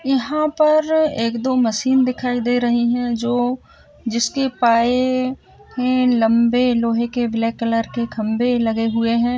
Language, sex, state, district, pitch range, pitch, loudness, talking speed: Hindi, female, Uttar Pradesh, Jalaun, 230-255 Hz, 245 Hz, -18 LUFS, 140 wpm